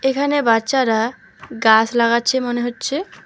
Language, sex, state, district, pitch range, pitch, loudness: Bengali, female, West Bengal, Alipurduar, 225-265 Hz, 240 Hz, -17 LUFS